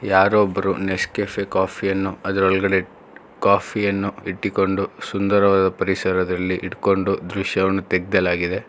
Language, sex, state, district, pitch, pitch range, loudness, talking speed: Kannada, male, Karnataka, Bangalore, 95 Hz, 95-100 Hz, -20 LUFS, 90 wpm